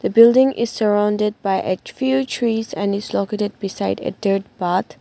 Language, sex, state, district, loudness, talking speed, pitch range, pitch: English, female, Nagaland, Dimapur, -19 LUFS, 165 wpm, 195-230 Hz, 210 Hz